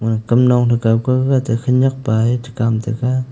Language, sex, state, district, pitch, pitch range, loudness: Wancho, male, Arunachal Pradesh, Longding, 120 Hz, 115-130 Hz, -16 LUFS